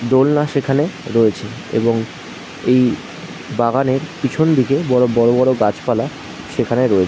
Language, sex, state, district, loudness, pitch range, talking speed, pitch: Bengali, male, West Bengal, Jhargram, -17 LUFS, 115-135 Hz, 120 wpm, 125 Hz